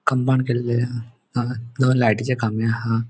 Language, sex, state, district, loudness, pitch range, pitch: Konkani, male, Goa, North and South Goa, -21 LUFS, 115-125 Hz, 120 Hz